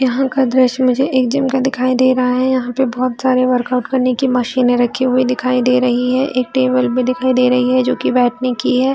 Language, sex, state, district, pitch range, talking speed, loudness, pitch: Hindi, female, Chhattisgarh, Bilaspur, 250-260 Hz, 240 wpm, -15 LUFS, 255 Hz